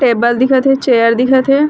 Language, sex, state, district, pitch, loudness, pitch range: Chhattisgarhi, female, Chhattisgarh, Bilaspur, 260 Hz, -11 LUFS, 240-265 Hz